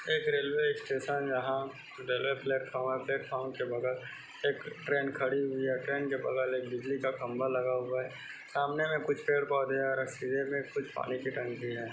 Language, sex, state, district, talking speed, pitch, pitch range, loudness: Hindi, male, Chhattisgarh, Bastar, 190 wpm, 135 Hz, 130-140 Hz, -33 LUFS